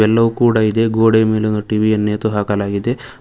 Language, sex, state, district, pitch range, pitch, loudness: Kannada, male, Karnataka, Koppal, 105-115 Hz, 110 Hz, -15 LUFS